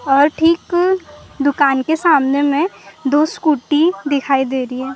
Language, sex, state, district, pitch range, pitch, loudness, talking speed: Hindi, female, Maharashtra, Gondia, 275-320 Hz, 290 Hz, -16 LUFS, 145 wpm